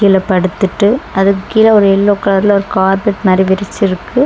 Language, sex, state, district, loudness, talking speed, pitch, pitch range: Tamil, female, Tamil Nadu, Chennai, -11 LUFS, 155 wpm, 195 Hz, 190-205 Hz